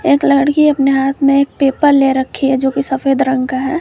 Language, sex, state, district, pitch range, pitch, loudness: Hindi, female, Jharkhand, Garhwa, 270-280 Hz, 275 Hz, -13 LUFS